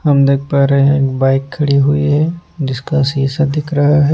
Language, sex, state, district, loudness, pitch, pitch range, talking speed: Hindi, male, Punjab, Pathankot, -14 LUFS, 140 Hz, 140-150 Hz, 215 wpm